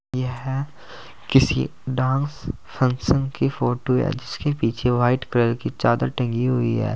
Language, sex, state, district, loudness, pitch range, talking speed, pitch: Hindi, male, Uttar Pradesh, Saharanpur, -22 LUFS, 120-135 Hz, 140 wpm, 125 Hz